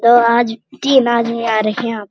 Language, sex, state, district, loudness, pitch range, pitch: Hindi, male, Uttarakhand, Uttarkashi, -15 LUFS, 225-240 Hz, 235 Hz